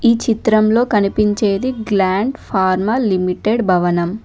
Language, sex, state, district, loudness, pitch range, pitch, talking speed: Telugu, female, Telangana, Mahabubabad, -16 LUFS, 190-230 Hz, 210 Hz, 100 wpm